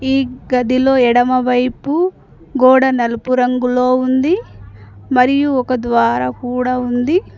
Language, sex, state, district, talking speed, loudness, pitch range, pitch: Telugu, female, Telangana, Mahabubabad, 100 wpm, -15 LUFS, 245-265 Hz, 255 Hz